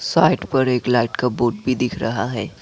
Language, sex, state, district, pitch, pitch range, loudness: Hindi, male, Assam, Kamrup Metropolitan, 125 Hz, 115-130 Hz, -20 LUFS